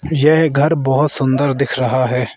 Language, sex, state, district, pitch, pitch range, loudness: Hindi, male, Arunachal Pradesh, Lower Dibang Valley, 140 Hz, 130-150 Hz, -15 LUFS